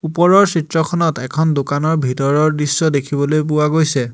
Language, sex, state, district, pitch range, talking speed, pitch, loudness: Assamese, male, Assam, Hailakandi, 140-160 Hz, 130 wpm, 155 Hz, -15 LUFS